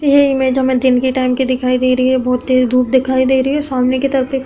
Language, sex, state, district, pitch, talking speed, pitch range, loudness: Hindi, female, Uttar Pradesh, Hamirpur, 260 Hz, 310 wpm, 255-265 Hz, -14 LUFS